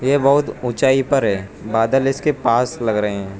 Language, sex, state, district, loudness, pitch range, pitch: Hindi, male, Arunachal Pradesh, Lower Dibang Valley, -18 LUFS, 110-135 Hz, 125 Hz